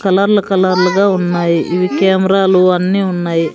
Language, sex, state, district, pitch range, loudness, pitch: Telugu, female, Andhra Pradesh, Sri Satya Sai, 180-195 Hz, -13 LUFS, 185 Hz